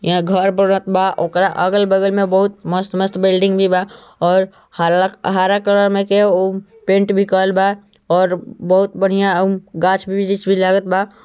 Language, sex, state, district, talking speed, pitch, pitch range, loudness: Bhojpuri, male, Bihar, East Champaran, 165 wpm, 190 Hz, 185-200 Hz, -16 LUFS